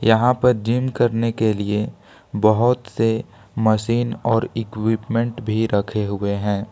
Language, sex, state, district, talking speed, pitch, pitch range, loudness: Hindi, male, Jharkhand, Ranchi, 135 wpm, 110 Hz, 105-115 Hz, -20 LUFS